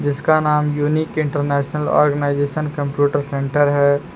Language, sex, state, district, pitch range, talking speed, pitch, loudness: Hindi, male, Jharkhand, Palamu, 145-150 Hz, 115 wpm, 145 Hz, -18 LUFS